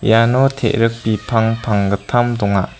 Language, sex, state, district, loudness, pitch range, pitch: Garo, female, Meghalaya, South Garo Hills, -16 LUFS, 105-120 Hz, 115 Hz